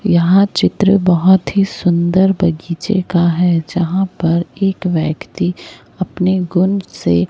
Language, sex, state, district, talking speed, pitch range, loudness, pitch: Hindi, male, Chhattisgarh, Raipur, 125 wpm, 170-190 Hz, -15 LUFS, 180 Hz